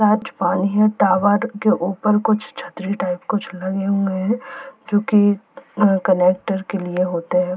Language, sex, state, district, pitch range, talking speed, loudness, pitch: Hindi, female, Bihar, Gopalganj, 185-215 Hz, 150 wpm, -19 LUFS, 200 Hz